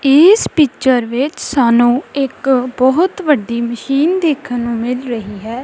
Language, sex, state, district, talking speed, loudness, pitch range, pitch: Punjabi, female, Punjab, Kapurthala, 140 wpm, -14 LUFS, 240-290 Hz, 260 Hz